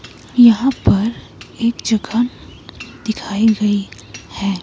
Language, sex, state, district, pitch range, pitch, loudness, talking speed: Hindi, female, Himachal Pradesh, Shimla, 210-235 Hz, 220 Hz, -16 LUFS, 90 wpm